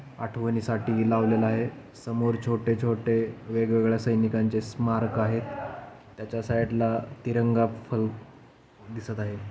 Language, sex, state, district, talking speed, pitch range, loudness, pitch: Marathi, male, Maharashtra, Pune, 115 wpm, 110-115 Hz, -27 LUFS, 115 Hz